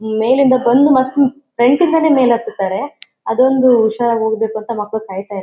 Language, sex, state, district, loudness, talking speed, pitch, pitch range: Kannada, female, Karnataka, Shimoga, -14 LUFS, 145 wpm, 235 Hz, 220-265 Hz